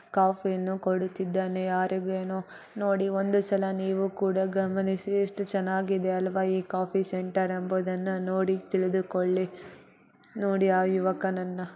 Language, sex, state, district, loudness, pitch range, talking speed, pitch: Kannada, female, Karnataka, Bellary, -28 LUFS, 185-195 Hz, 130 wpm, 190 Hz